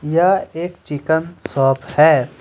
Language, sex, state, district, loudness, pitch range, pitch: Hindi, male, Jharkhand, Deoghar, -17 LUFS, 145-170 Hz, 160 Hz